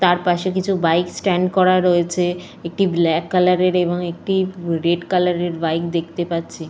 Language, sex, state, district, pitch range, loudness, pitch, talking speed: Bengali, female, Jharkhand, Jamtara, 170-185 Hz, -19 LUFS, 175 Hz, 170 wpm